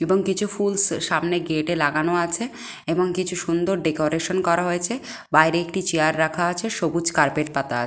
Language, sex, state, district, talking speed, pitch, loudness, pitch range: Bengali, female, West Bengal, Jalpaiguri, 175 wpm, 170 Hz, -22 LUFS, 160-185 Hz